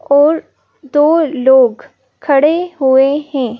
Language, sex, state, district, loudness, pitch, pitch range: Hindi, female, Madhya Pradesh, Bhopal, -12 LUFS, 285 Hz, 265-305 Hz